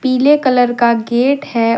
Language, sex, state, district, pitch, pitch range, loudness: Hindi, female, Jharkhand, Deoghar, 245 Hz, 235-265 Hz, -13 LUFS